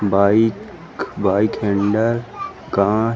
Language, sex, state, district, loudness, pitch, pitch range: Chhattisgarhi, male, Chhattisgarh, Rajnandgaon, -18 LUFS, 105 Hz, 100-115 Hz